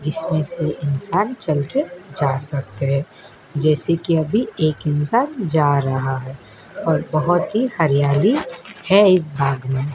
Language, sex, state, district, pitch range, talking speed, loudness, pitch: Hindi, male, Madhya Pradesh, Dhar, 140-180 Hz, 145 wpm, -19 LUFS, 150 Hz